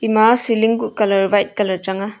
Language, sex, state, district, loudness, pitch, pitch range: Wancho, female, Arunachal Pradesh, Longding, -16 LUFS, 210 Hz, 200-225 Hz